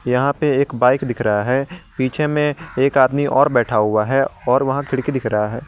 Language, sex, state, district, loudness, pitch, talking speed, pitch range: Hindi, male, Jharkhand, Garhwa, -18 LUFS, 130 Hz, 220 wpm, 125-140 Hz